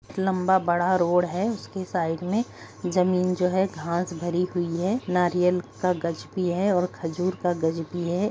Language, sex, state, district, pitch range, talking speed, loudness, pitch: Hindi, female, Jharkhand, Sahebganj, 175-185 Hz, 195 wpm, -25 LUFS, 180 Hz